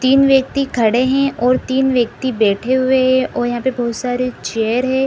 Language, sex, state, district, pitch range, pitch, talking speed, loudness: Hindi, female, Bihar, Supaul, 240-260 Hz, 255 Hz, 210 wpm, -16 LUFS